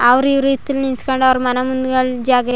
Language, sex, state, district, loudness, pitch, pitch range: Kannada, female, Karnataka, Chamarajanagar, -16 LUFS, 260 Hz, 250-270 Hz